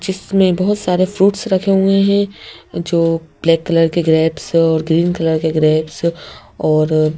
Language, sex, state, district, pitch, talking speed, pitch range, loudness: Hindi, female, Madhya Pradesh, Bhopal, 170 Hz, 150 wpm, 160-190 Hz, -15 LUFS